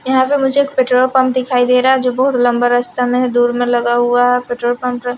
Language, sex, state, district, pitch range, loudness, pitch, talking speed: Hindi, female, Haryana, Rohtak, 245-255 Hz, -14 LUFS, 250 Hz, 280 wpm